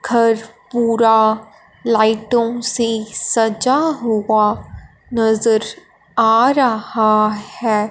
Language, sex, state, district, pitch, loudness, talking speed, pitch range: Hindi, male, Punjab, Fazilka, 225 Hz, -16 LUFS, 70 wpm, 215-235 Hz